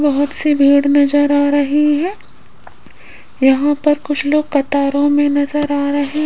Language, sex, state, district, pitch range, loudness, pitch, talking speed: Hindi, female, Rajasthan, Jaipur, 285-295 Hz, -14 LUFS, 290 Hz, 165 wpm